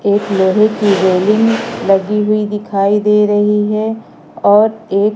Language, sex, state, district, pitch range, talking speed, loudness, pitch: Hindi, female, Madhya Pradesh, Katni, 200-215 Hz, 140 wpm, -13 LUFS, 210 Hz